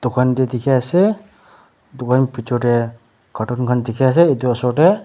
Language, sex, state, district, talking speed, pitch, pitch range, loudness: Nagamese, male, Nagaland, Dimapur, 140 wpm, 125 Hz, 120-135 Hz, -17 LUFS